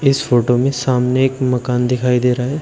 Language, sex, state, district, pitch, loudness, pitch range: Hindi, male, Uttar Pradesh, Shamli, 125 Hz, -16 LUFS, 125-130 Hz